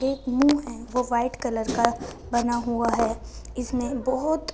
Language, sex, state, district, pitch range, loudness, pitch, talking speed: Hindi, female, Punjab, Fazilka, 235-265 Hz, -25 LUFS, 250 Hz, 160 wpm